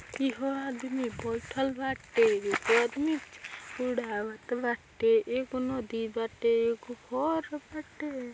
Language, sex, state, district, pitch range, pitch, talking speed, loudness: Hindi, female, Uttar Pradesh, Deoria, 235-290 Hz, 260 Hz, 120 wpm, -31 LUFS